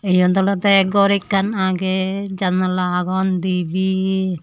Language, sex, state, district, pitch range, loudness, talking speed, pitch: Chakma, female, Tripura, Unakoti, 185-195 Hz, -18 LUFS, 110 wpm, 190 Hz